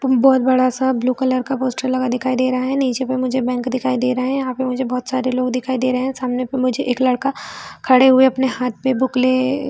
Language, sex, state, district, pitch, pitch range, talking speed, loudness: Hindi, female, Chhattisgarh, Bilaspur, 255 Hz, 255-260 Hz, 265 wpm, -18 LUFS